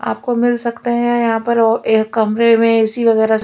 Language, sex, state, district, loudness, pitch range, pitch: Hindi, female, Delhi, New Delhi, -15 LUFS, 220-240 Hz, 230 Hz